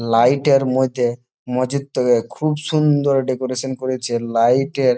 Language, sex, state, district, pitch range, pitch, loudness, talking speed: Bengali, male, West Bengal, Malda, 120-140 Hz, 130 Hz, -18 LUFS, 135 wpm